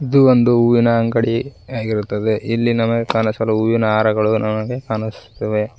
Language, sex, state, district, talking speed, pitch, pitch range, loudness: Kannada, male, Karnataka, Koppal, 125 wpm, 115 Hz, 110-120 Hz, -17 LUFS